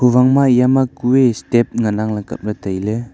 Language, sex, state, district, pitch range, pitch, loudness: Wancho, male, Arunachal Pradesh, Longding, 105-125 Hz, 120 Hz, -16 LUFS